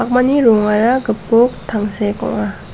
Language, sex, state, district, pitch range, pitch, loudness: Garo, female, Meghalaya, South Garo Hills, 210-245 Hz, 225 Hz, -15 LUFS